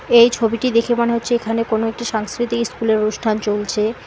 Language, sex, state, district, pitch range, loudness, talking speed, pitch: Bengali, female, West Bengal, Alipurduar, 220-235 Hz, -18 LUFS, 175 wpm, 230 Hz